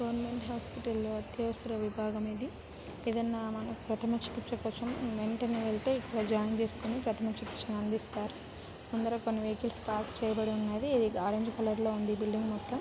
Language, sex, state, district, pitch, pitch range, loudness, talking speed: Telugu, female, Telangana, Nalgonda, 225 Hz, 215-235 Hz, -34 LUFS, 140 wpm